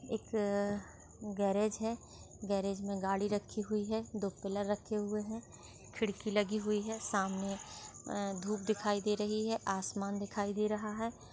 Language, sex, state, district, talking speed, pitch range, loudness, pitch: Hindi, female, Rajasthan, Churu, 160 wpm, 200-215 Hz, -37 LUFS, 210 Hz